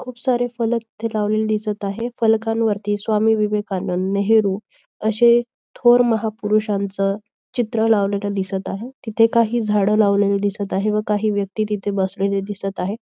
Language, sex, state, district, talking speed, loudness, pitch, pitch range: Marathi, female, Maharashtra, Aurangabad, 145 wpm, -20 LUFS, 210 Hz, 200-225 Hz